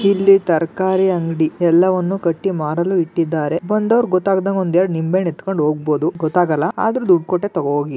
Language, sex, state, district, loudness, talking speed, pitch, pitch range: Kannada, male, Karnataka, Gulbarga, -17 LUFS, 150 wpm, 180 Hz, 160-190 Hz